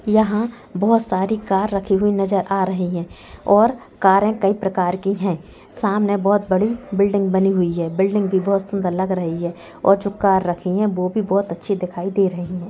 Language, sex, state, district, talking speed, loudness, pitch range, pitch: Hindi, female, Bihar, Gopalganj, 205 wpm, -19 LUFS, 185-205 Hz, 195 Hz